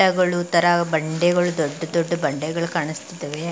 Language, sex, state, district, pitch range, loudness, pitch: Kannada, female, Karnataka, Chamarajanagar, 160-175 Hz, -21 LUFS, 170 Hz